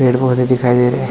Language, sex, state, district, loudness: Hindi, male, Chhattisgarh, Bilaspur, -14 LUFS